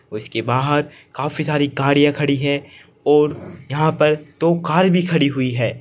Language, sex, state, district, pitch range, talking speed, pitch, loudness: Hindi, male, Uttar Pradesh, Saharanpur, 140-155 Hz, 165 wpm, 145 Hz, -18 LUFS